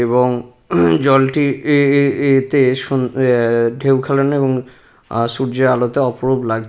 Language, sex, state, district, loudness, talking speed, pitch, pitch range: Bengali, male, West Bengal, Purulia, -15 LUFS, 145 wpm, 130 Hz, 125-135 Hz